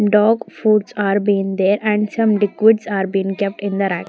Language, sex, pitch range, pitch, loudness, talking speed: English, female, 195-215 Hz, 205 Hz, -17 LUFS, 205 wpm